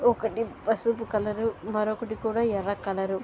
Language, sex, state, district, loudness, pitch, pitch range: Telugu, female, Andhra Pradesh, Guntur, -28 LUFS, 220 Hz, 210-225 Hz